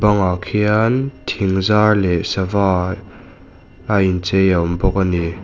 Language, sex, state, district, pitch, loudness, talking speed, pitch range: Mizo, male, Mizoram, Aizawl, 95 Hz, -17 LUFS, 145 wpm, 90-105 Hz